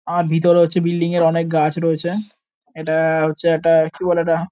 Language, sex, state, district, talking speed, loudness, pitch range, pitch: Bengali, male, West Bengal, North 24 Parganas, 185 wpm, -17 LUFS, 160-175 Hz, 165 Hz